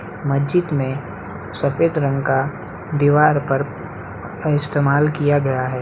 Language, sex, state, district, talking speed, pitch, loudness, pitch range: Hindi, female, Bihar, Darbhanga, 115 wpm, 140 Hz, -19 LUFS, 130-150 Hz